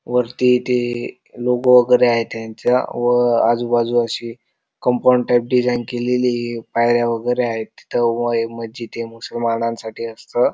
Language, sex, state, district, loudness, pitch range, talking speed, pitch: Marathi, male, Maharashtra, Dhule, -18 LUFS, 115-125 Hz, 135 wpm, 120 Hz